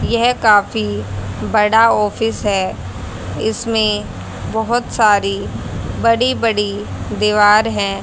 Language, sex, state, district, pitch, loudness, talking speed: Hindi, female, Haryana, Charkhi Dadri, 205 Hz, -16 LUFS, 90 wpm